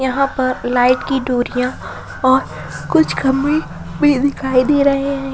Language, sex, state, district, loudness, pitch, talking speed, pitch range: Hindi, female, Bihar, Kishanganj, -16 LUFS, 265 Hz, 145 wpm, 255-280 Hz